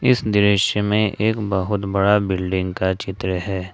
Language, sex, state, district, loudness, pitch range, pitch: Hindi, male, Jharkhand, Ranchi, -20 LUFS, 95-105 Hz, 100 Hz